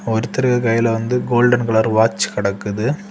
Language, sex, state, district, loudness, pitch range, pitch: Tamil, male, Tamil Nadu, Kanyakumari, -17 LUFS, 110-125 Hz, 115 Hz